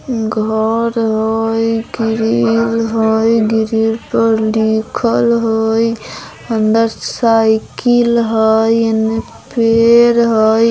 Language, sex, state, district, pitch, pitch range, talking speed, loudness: Bajjika, female, Bihar, Vaishali, 225 Hz, 220-230 Hz, 80 wpm, -13 LUFS